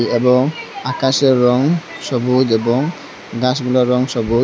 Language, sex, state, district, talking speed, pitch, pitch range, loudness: Bengali, male, Assam, Hailakandi, 110 wpm, 125 Hz, 125-130 Hz, -16 LUFS